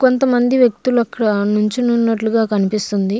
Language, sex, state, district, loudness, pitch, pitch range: Telugu, female, Andhra Pradesh, Guntur, -16 LUFS, 225 Hz, 210-245 Hz